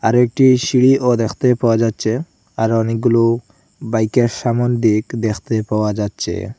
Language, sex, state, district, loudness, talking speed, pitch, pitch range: Bengali, male, Assam, Hailakandi, -16 LUFS, 130 wpm, 115 Hz, 110-125 Hz